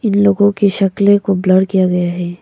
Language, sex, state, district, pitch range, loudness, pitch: Hindi, female, Arunachal Pradesh, Lower Dibang Valley, 185-200 Hz, -13 LUFS, 195 Hz